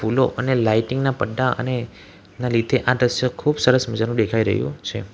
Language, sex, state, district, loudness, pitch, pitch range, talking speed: Gujarati, male, Gujarat, Valsad, -20 LUFS, 120 Hz, 110-130 Hz, 185 wpm